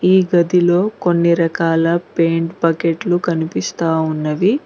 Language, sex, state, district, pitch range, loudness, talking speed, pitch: Telugu, female, Telangana, Mahabubabad, 165-175 Hz, -16 LUFS, 105 wpm, 170 Hz